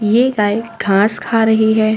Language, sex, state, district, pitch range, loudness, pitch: Hindi, female, Chhattisgarh, Bastar, 210-225 Hz, -14 LUFS, 220 Hz